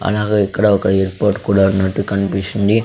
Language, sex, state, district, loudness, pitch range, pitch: Telugu, male, Andhra Pradesh, Sri Satya Sai, -16 LUFS, 95-105 Hz, 100 Hz